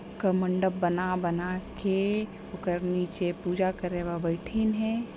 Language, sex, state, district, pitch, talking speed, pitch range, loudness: Chhattisgarhi, female, Chhattisgarh, Sarguja, 185 Hz, 130 wpm, 180-200 Hz, -29 LUFS